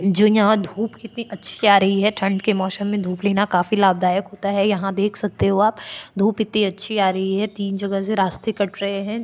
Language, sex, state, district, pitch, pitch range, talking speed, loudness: Hindi, female, Maharashtra, Chandrapur, 200 Hz, 195-210 Hz, 235 wpm, -20 LUFS